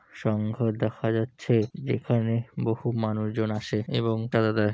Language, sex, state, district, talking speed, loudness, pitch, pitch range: Bengali, male, West Bengal, Jalpaiguri, 140 wpm, -27 LUFS, 110 Hz, 110-115 Hz